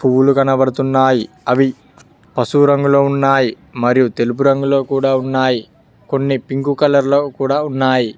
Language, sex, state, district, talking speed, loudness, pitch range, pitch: Telugu, male, Telangana, Mahabubabad, 125 wpm, -15 LUFS, 130-140 Hz, 135 Hz